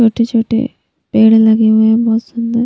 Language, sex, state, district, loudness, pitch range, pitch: Hindi, female, Maharashtra, Mumbai Suburban, -12 LUFS, 220-230 Hz, 225 Hz